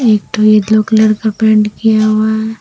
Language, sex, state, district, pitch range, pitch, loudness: Hindi, female, Jharkhand, Deoghar, 215-220 Hz, 215 Hz, -11 LUFS